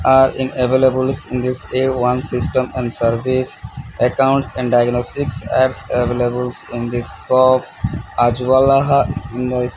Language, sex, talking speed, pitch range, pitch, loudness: English, male, 125 wpm, 120-130 Hz, 125 Hz, -17 LUFS